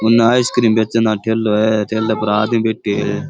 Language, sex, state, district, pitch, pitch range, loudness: Rajasthani, male, Rajasthan, Churu, 110 Hz, 110-115 Hz, -15 LUFS